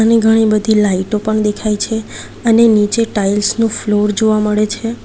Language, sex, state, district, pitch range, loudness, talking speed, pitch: Gujarati, female, Gujarat, Valsad, 210-225 Hz, -14 LUFS, 180 wpm, 215 Hz